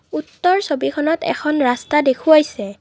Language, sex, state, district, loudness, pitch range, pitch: Assamese, female, Assam, Kamrup Metropolitan, -17 LUFS, 265-320 Hz, 300 Hz